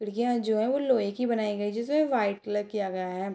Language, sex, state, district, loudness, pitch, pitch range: Hindi, female, Bihar, Sitamarhi, -28 LUFS, 215 Hz, 205-240 Hz